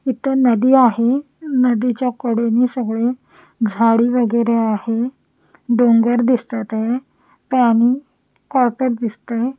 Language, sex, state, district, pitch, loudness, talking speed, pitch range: Marathi, female, Maharashtra, Washim, 240 Hz, -17 LUFS, 95 wpm, 230-255 Hz